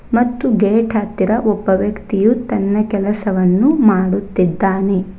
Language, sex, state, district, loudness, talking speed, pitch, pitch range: Kannada, female, Karnataka, Bangalore, -15 LUFS, 95 wpm, 205 Hz, 195-225 Hz